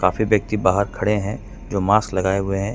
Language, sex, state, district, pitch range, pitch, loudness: Hindi, male, Jharkhand, Ranchi, 95-105 Hz, 100 Hz, -20 LUFS